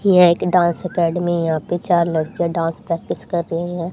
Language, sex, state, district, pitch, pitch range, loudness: Hindi, female, Haryana, Charkhi Dadri, 170 Hz, 170-175 Hz, -19 LUFS